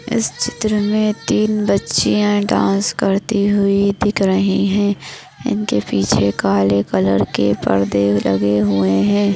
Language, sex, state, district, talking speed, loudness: Hindi, female, Maharashtra, Solapur, 130 wpm, -16 LUFS